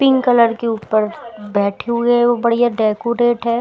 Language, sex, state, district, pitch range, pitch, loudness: Hindi, female, Bihar, Patna, 220-240 Hz, 235 Hz, -16 LUFS